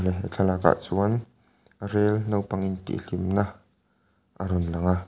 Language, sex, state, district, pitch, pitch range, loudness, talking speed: Mizo, male, Mizoram, Aizawl, 95 Hz, 90-100 Hz, -26 LUFS, 140 wpm